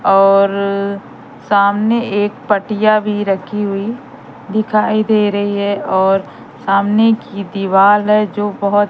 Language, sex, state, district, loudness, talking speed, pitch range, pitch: Hindi, female, Madhya Pradesh, Katni, -14 LUFS, 120 wpm, 200-215 Hz, 205 Hz